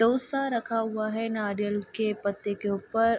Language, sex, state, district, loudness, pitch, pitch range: Hindi, female, Bihar, Darbhanga, -29 LUFS, 215 Hz, 205-230 Hz